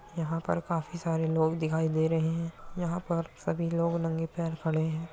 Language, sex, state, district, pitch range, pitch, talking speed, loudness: Hindi, male, Uttar Pradesh, Muzaffarnagar, 160-170 Hz, 165 Hz, 200 wpm, -31 LUFS